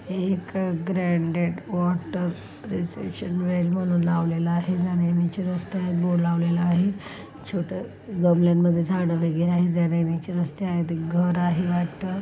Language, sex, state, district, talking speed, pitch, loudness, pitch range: Marathi, female, Maharashtra, Solapur, 130 wpm, 175 Hz, -24 LUFS, 170-180 Hz